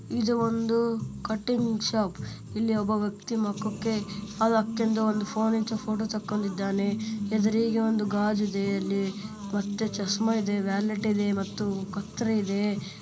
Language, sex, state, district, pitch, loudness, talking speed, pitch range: Kannada, male, Karnataka, Bellary, 210 Hz, -28 LUFS, 125 wpm, 200-220 Hz